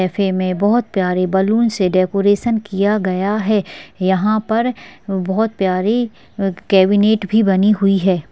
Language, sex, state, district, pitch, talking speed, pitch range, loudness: Hindi, female, Bihar, Madhepura, 200 Hz, 135 wpm, 190-215 Hz, -16 LUFS